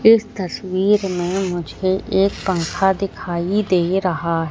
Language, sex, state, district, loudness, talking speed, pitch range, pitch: Hindi, female, Madhya Pradesh, Katni, -19 LUFS, 120 wpm, 175-195 Hz, 190 Hz